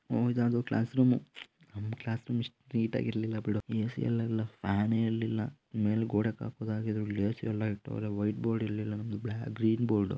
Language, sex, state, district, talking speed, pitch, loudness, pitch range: Kannada, male, Karnataka, Mysore, 205 wpm, 110 Hz, -32 LUFS, 105-115 Hz